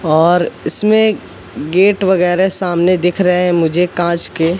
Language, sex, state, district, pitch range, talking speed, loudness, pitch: Hindi, male, Madhya Pradesh, Katni, 170-190 Hz, 145 wpm, -13 LUFS, 180 Hz